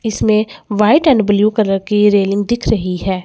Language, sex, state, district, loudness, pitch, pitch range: Hindi, female, Chandigarh, Chandigarh, -14 LUFS, 210 Hz, 200-220 Hz